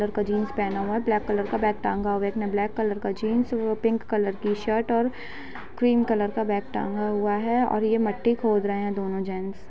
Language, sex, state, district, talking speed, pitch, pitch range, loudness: Hindi, female, Bihar, Lakhisarai, 240 wpm, 210 Hz, 205-225 Hz, -25 LUFS